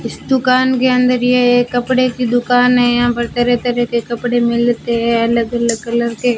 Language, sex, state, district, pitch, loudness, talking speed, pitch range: Hindi, female, Rajasthan, Bikaner, 245 Hz, -14 LUFS, 195 wpm, 235-250 Hz